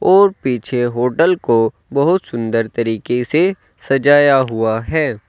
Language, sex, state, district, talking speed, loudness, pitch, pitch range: Hindi, male, Uttar Pradesh, Saharanpur, 125 wpm, -15 LUFS, 125 Hz, 115-160 Hz